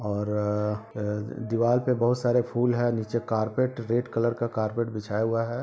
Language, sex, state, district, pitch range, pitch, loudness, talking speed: Hindi, male, Bihar, Sitamarhi, 105-120 Hz, 115 Hz, -27 LUFS, 200 wpm